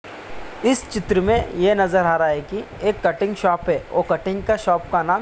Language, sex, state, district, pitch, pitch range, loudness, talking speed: Hindi, male, Bihar, Samastipur, 190 Hz, 175-210 Hz, -20 LUFS, 205 wpm